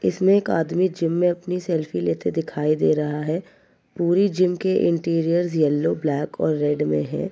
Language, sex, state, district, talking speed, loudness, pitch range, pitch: Hindi, male, Uttar Pradesh, Jyotiba Phule Nagar, 180 wpm, -22 LUFS, 150-180 Hz, 165 Hz